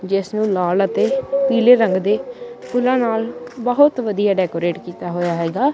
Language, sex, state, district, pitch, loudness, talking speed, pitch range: Punjabi, male, Punjab, Kapurthala, 225 Hz, -18 LUFS, 155 wpm, 185-250 Hz